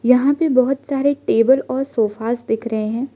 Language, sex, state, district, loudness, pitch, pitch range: Hindi, female, Arunachal Pradesh, Lower Dibang Valley, -18 LUFS, 255 Hz, 230-275 Hz